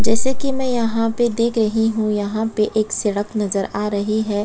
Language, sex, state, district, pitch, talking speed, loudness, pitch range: Hindi, female, Chhattisgarh, Sukma, 220 Hz, 215 wpm, -20 LUFS, 210-230 Hz